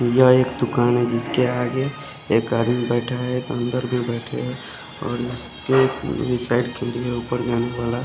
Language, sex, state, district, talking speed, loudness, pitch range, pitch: Hindi, male, Odisha, Khordha, 155 wpm, -22 LUFS, 120-125 Hz, 120 Hz